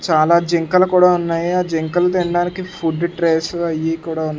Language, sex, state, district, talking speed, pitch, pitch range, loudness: Telugu, male, Andhra Pradesh, Sri Satya Sai, 175 wpm, 170 Hz, 160-180 Hz, -17 LUFS